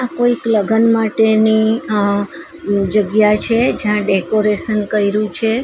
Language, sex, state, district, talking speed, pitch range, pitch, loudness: Gujarati, female, Gujarat, Valsad, 105 wpm, 205-225 Hz, 215 Hz, -15 LUFS